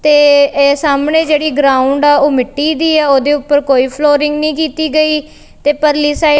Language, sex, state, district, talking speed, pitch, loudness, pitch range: Punjabi, female, Punjab, Kapurthala, 195 wpm, 295 Hz, -11 LUFS, 285-305 Hz